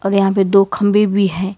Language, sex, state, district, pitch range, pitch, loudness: Hindi, female, Karnataka, Bangalore, 195-200 Hz, 195 Hz, -14 LUFS